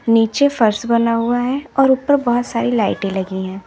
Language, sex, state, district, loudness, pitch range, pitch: Hindi, female, Uttar Pradesh, Lalitpur, -17 LUFS, 220-260 Hz, 235 Hz